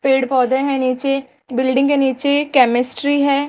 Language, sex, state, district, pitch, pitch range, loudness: Hindi, female, Maharashtra, Mumbai Suburban, 270 Hz, 260-280 Hz, -16 LUFS